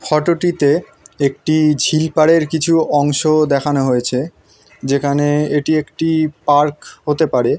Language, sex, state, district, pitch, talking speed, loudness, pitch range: Bengali, male, West Bengal, North 24 Parganas, 150 Hz, 120 wpm, -15 LUFS, 145-160 Hz